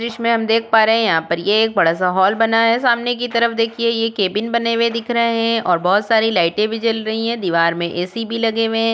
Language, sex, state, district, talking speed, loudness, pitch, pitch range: Hindi, female, Uttar Pradesh, Budaun, 290 wpm, -17 LUFS, 225 Hz, 205-230 Hz